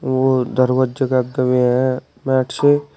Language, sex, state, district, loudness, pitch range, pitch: Hindi, male, Uttar Pradesh, Shamli, -17 LUFS, 125-130 Hz, 130 Hz